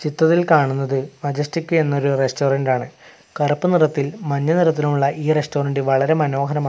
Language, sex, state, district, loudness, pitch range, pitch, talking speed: Malayalam, male, Kerala, Kasaragod, -19 LUFS, 140-155 Hz, 145 Hz, 125 wpm